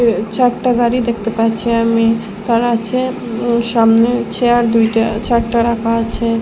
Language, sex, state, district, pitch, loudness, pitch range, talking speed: Bengali, female, Assam, Hailakandi, 230 Hz, -15 LUFS, 225-240 Hz, 130 wpm